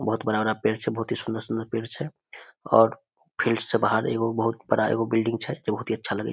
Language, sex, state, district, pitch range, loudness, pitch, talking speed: Maithili, male, Bihar, Samastipur, 110-115 Hz, -25 LUFS, 115 Hz, 235 wpm